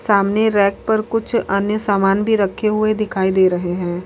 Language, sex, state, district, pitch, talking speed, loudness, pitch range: Hindi, female, Uttar Pradesh, Lalitpur, 200 Hz, 190 wpm, -17 LUFS, 190-215 Hz